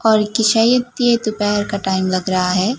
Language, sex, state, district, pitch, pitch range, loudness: Hindi, female, Gujarat, Gandhinagar, 215 Hz, 190-230 Hz, -16 LUFS